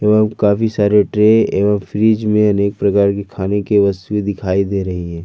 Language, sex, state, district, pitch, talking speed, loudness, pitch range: Hindi, male, Jharkhand, Ranchi, 105 Hz, 195 wpm, -15 LUFS, 100-105 Hz